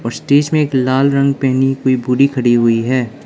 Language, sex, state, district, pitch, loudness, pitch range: Hindi, male, Arunachal Pradesh, Lower Dibang Valley, 130 Hz, -14 LUFS, 125-140 Hz